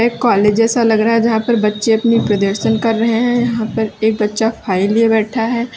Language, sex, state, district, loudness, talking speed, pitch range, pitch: Hindi, female, Uttar Pradesh, Lalitpur, -14 LUFS, 230 wpm, 215-230 Hz, 225 Hz